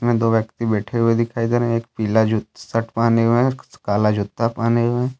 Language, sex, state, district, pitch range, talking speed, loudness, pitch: Hindi, male, Jharkhand, Deoghar, 110-120 Hz, 240 wpm, -19 LUFS, 115 Hz